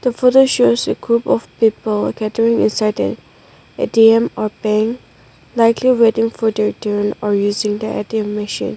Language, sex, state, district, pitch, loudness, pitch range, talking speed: English, female, Nagaland, Dimapur, 220 Hz, -16 LUFS, 210-230 Hz, 150 wpm